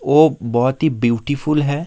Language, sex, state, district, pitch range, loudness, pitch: Hindi, male, Bihar, Darbhanga, 120-150 Hz, -17 LUFS, 145 Hz